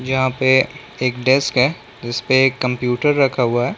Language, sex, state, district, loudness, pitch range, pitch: Hindi, male, Chhattisgarh, Bilaspur, -17 LUFS, 125-135 Hz, 130 Hz